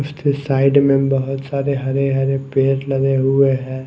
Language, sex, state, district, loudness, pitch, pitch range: Hindi, male, Chhattisgarh, Raipur, -17 LUFS, 135 Hz, 135-140 Hz